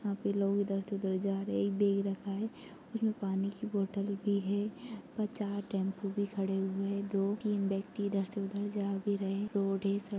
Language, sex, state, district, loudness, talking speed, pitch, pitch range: Hindi, female, Chhattisgarh, Raigarh, -35 LUFS, 235 wpm, 200 Hz, 195-205 Hz